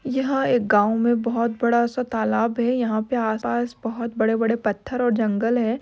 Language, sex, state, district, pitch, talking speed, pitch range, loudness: Hindi, female, Maharashtra, Dhule, 235 Hz, 175 wpm, 225-245 Hz, -22 LUFS